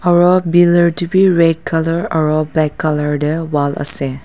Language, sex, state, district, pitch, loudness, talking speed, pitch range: Nagamese, female, Nagaland, Dimapur, 160 Hz, -14 LUFS, 170 wpm, 150-175 Hz